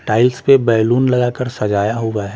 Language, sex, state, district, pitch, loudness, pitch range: Hindi, male, Bihar, West Champaran, 120 Hz, -15 LUFS, 110-125 Hz